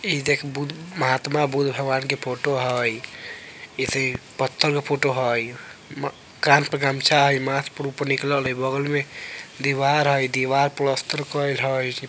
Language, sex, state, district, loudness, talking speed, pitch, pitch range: Bajjika, male, Bihar, Vaishali, -22 LUFS, 160 wpm, 140 Hz, 130-145 Hz